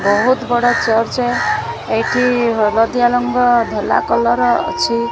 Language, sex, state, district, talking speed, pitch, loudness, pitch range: Odia, female, Odisha, Sambalpur, 105 wpm, 240 Hz, -15 LUFS, 230-245 Hz